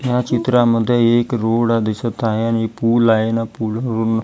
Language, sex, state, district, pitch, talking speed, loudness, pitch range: Marathi, female, Maharashtra, Gondia, 115 Hz, 185 wpm, -17 LUFS, 115-120 Hz